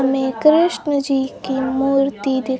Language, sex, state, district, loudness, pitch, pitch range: Hindi, female, Bihar, Kaimur, -18 LUFS, 270 Hz, 265-280 Hz